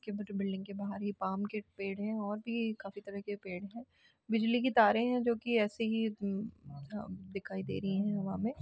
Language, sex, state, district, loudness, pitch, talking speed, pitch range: Hindi, female, Uttar Pradesh, Jalaun, -35 LUFS, 205 Hz, 235 wpm, 195-225 Hz